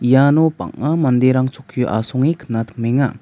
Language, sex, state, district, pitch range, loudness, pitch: Garo, male, Meghalaya, West Garo Hills, 120-145 Hz, -17 LUFS, 130 Hz